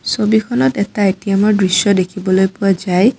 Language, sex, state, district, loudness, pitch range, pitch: Assamese, female, Assam, Kamrup Metropolitan, -14 LUFS, 190-220 Hz, 200 Hz